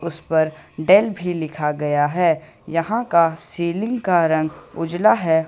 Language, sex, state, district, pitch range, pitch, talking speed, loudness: Hindi, male, Jharkhand, Ranchi, 155-175 Hz, 165 Hz, 155 wpm, -20 LUFS